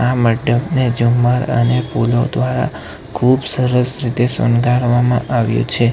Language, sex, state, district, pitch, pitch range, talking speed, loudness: Gujarati, male, Gujarat, Valsad, 120 Hz, 120-125 Hz, 120 wpm, -15 LUFS